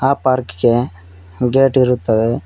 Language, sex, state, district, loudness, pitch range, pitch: Kannada, male, Karnataka, Koppal, -15 LUFS, 110-130 Hz, 125 Hz